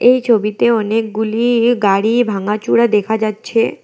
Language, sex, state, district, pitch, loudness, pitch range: Bengali, female, West Bengal, Alipurduar, 220 Hz, -15 LUFS, 210-235 Hz